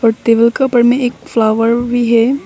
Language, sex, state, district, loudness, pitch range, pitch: Hindi, female, Arunachal Pradesh, Longding, -12 LUFS, 230-245 Hz, 235 Hz